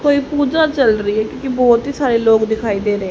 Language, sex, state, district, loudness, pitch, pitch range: Hindi, female, Haryana, Rohtak, -15 LUFS, 235 Hz, 220-280 Hz